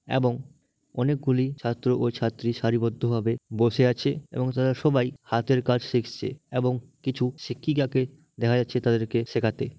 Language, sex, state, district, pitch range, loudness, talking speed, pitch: Bengali, male, West Bengal, Malda, 120-135 Hz, -26 LUFS, 135 wpm, 125 Hz